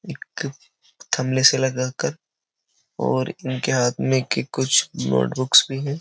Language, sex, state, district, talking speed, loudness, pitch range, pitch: Hindi, male, Uttar Pradesh, Jyotiba Phule Nagar, 130 wpm, -21 LUFS, 125-130 Hz, 130 Hz